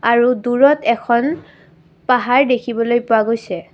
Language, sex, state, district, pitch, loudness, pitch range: Assamese, female, Assam, Kamrup Metropolitan, 240 Hz, -16 LUFS, 230-250 Hz